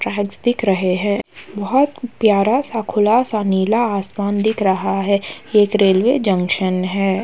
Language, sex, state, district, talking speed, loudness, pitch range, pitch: Hindi, female, Uttar Pradesh, Muzaffarnagar, 150 wpm, -17 LUFS, 195-225 Hz, 205 Hz